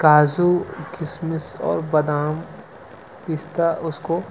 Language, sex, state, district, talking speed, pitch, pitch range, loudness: Hindi, male, Chhattisgarh, Sukma, 95 wpm, 160 Hz, 155-170 Hz, -22 LUFS